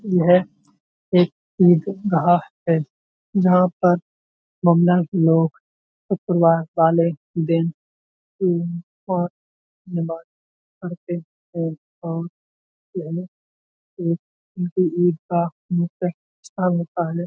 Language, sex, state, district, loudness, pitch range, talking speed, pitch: Hindi, male, Uttar Pradesh, Budaun, -21 LUFS, 165-180 Hz, 65 wpm, 170 Hz